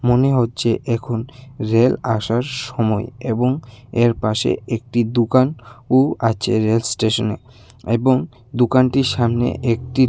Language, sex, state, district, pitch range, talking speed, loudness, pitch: Bengali, male, Tripura, West Tripura, 115-125 Hz, 115 wpm, -19 LUFS, 120 Hz